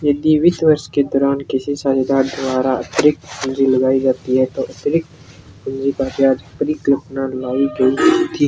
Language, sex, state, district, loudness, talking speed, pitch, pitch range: Hindi, male, Rajasthan, Churu, -17 LUFS, 140 wpm, 135 Hz, 130-145 Hz